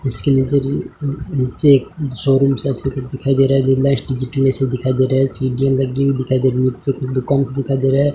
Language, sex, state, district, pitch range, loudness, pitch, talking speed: Hindi, male, Rajasthan, Bikaner, 130-135 Hz, -17 LUFS, 135 Hz, 220 wpm